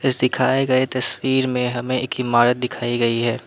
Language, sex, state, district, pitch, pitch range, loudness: Hindi, male, Assam, Kamrup Metropolitan, 125 Hz, 120-130 Hz, -19 LUFS